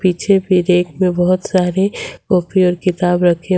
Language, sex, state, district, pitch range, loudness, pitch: Hindi, female, Jharkhand, Ranchi, 180-185 Hz, -15 LUFS, 180 Hz